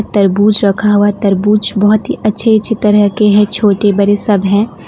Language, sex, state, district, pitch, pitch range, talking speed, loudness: Hindi, female, West Bengal, Alipurduar, 205 Hz, 200-210 Hz, 195 wpm, -11 LUFS